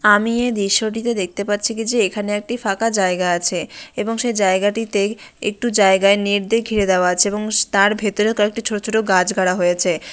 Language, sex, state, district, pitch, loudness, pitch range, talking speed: Bengali, female, West Bengal, Dakshin Dinajpur, 205 Hz, -18 LUFS, 195-220 Hz, 185 wpm